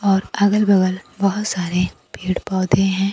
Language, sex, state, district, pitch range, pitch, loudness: Hindi, female, Bihar, Kaimur, 185-200 Hz, 195 Hz, -19 LUFS